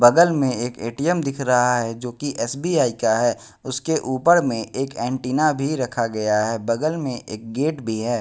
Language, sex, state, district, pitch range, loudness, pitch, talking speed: Hindi, male, Bihar, West Champaran, 115-140 Hz, -21 LUFS, 125 Hz, 195 wpm